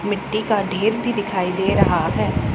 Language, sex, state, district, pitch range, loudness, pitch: Hindi, female, Punjab, Pathankot, 175-215 Hz, -20 LUFS, 195 Hz